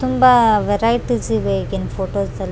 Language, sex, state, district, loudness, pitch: Kannada, female, Karnataka, Raichur, -17 LUFS, 220 Hz